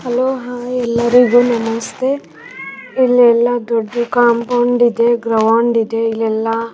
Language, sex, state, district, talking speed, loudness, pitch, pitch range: Kannada, female, Karnataka, Raichur, 55 wpm, -14 LUFS, 240 Hz, 230-245 Hz